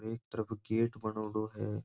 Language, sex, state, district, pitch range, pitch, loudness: Marwari, male, Rajasthan, Nagaur, 110-115 Hz, 110 Hz, -36 LUFS